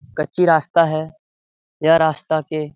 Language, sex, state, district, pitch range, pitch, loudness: Hindi, male, Bihar, Jahanabad, 150-165 Hz, 155 Hz, -18 LUFS